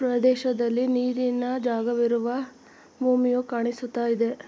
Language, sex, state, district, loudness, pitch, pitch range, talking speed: Kannada, female, Karnataka, Mysore, -25 LUFS, 245 Hz, 235-255 Hz, 80 wpm